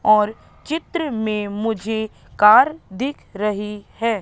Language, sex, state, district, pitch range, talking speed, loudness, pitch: Hindi, female, Madhya Pradesh, Katni, 210-255 Hz, 115 wpm, -20 LUFS, 220 Hz